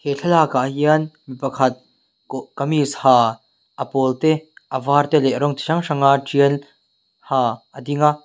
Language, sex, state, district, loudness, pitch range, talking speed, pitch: Mizo, male, Mizoram, Aizawl, -18 LUFS, 130-150 Hz, 180 wpm, 140 Hz